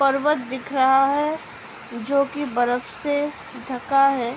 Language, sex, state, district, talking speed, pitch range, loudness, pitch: Hindi, female, Uttar Pradesh, Budaun, 150 wpm, 255-290 Hz, -22 LUFS, 275 Hz